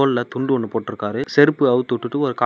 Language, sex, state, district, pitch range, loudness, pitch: Tamil, male, Tamil Nadu, Namakkal, 120-140 Hz, -19 LUFS, 130 Hz